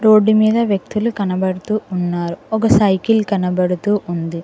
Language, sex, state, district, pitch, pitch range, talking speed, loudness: Telugu, female, Telangana, Mahabubabad, 200 Hz, 180-215 Hz, 120 wpm, -17 LUFS